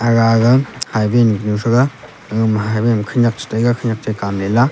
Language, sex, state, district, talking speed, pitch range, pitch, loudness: Wancho, male, Arunachal Pradesh, Longding, 215 wpm, 110-120 Hz, 115 Hz, -16 LUFS